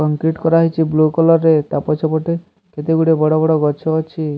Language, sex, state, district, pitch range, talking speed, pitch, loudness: Odia, male, Odisha, Sambalpur, 155-165 Hz, 205 wpm, 160 Hz, -15 LUFS